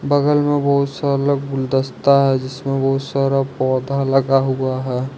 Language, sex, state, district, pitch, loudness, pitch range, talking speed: Hindi, male, Jharkhand, Ranchi, 135 Hz, -18 LUFS, 130-140 Hz, 140 wpm